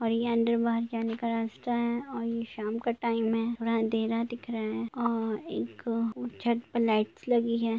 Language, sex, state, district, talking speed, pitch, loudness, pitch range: Hindi, female, Jharkhand, Jamtara, 200 wpm, 230 Hz, -30 LUFS, 225-235 Hz